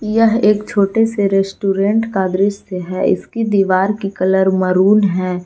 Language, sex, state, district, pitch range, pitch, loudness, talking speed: Hindi, female, Jharkhand, Garhwa, 190-210 Hz, 195 Hz, -15 LUFS, 155 wpm